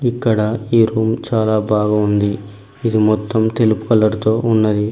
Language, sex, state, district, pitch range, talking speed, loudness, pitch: Telugu, male, Telangana, Mahabubabad, 105-110 Hz, 145 wpm, -16 LUFS, 110 Hz